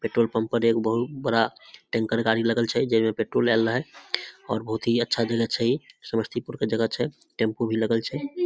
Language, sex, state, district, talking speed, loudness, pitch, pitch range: Maithili, male, Bihar, Samastipur, 220 wpm, -25 LUFS, 115 Hz, 115-120 Hz